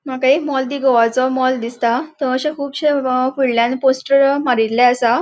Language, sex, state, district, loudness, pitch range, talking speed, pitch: Konkani, female, Goa, North and South Goa, -16 LUFS, 245-275 Hz, 160 wpm, 260 Hz